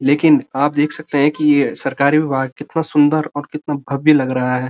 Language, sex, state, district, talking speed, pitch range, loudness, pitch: Hindi, male, Uttarakhand, Uttarkashi, 215 wpm, 140-150 Hz, -16 LUFS, 145 Hz